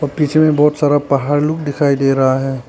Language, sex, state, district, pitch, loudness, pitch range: Hindi, male, Arunachal Pradesh, Papum Pare, 145 Hz, -14 LUFS, 135-150 Hz